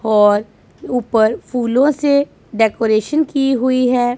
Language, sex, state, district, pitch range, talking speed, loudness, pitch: Hindi, male, Punjab, Pathankot, 220-270 Hz, 115 wpm, -16 LUFS, 245 Hz